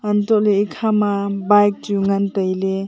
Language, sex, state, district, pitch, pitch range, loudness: Wancho, female, Arunachal Pradesh, Longding, 200 Hz, 195-210 Hz, -18 LUFS